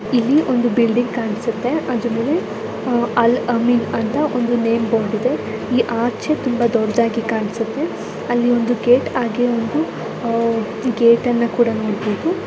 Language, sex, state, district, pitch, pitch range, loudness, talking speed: Kannada, female, Karnataka, Bijapur, 235 Hz, 230-245 Hz, -18 LUFS, 140 wpm